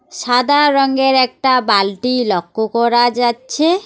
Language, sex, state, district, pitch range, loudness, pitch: Bengali, female, West Bengal, Alipurduar, 235-270 Hz, -14 LUFS, 250 Hz